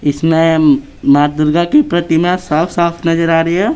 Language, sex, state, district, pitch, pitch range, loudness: Hindi, male, Bihar, Patna, 165 Hz, 150-170 Hz, -12 LUFS